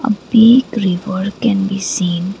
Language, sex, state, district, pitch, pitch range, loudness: English, female, Assam, Kamrup Metropolitan, 195 Hz, 190-225 Hz, -14 LUFS